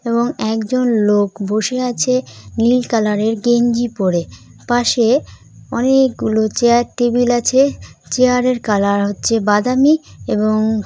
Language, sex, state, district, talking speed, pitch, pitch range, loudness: Bengali, female, West Bengal, Jalpaiguri, 120 wpm, 235 Hz, 210-245 Hz, -16 LUFS